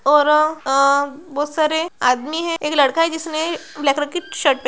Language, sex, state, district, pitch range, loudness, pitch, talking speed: Hindi, female, Bihar, Araria, 280-320 Hz, -18 LUFS, 300 Hz, 190 wpm